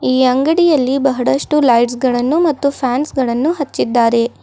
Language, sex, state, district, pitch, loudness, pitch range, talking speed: Kannada, female, Karnataka, Bidar, 260 Hz, -14 LUFS, 245-290 Hz, 95 wpm